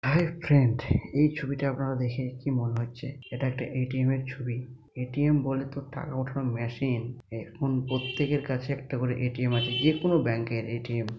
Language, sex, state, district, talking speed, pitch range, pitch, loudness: Bengali, male, West Bengal, Malda, 215 wpm, 120-140 Hz, 130 Hz, -29 LUFS